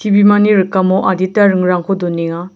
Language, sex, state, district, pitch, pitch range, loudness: Garo, male, Meghalaya, South Garo Hills, 190 Hz, 180-205 Hz, -12 LUFS